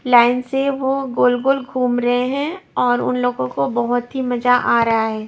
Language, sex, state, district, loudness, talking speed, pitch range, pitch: Hindi, female, Maharashtra, Washim, -18 LUFS, 205 wpm, 225-265 Hz, 245 Hz